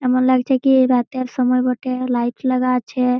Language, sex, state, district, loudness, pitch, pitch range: Bengali, female, West Bengal, Malda, -18 LUFS, 255 Hz, 250-255 Hz